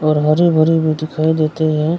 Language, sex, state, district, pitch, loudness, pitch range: Hindi, male, Bihar, Kishanganj, 155 Hz, -15 LUFS, 155-160 Hz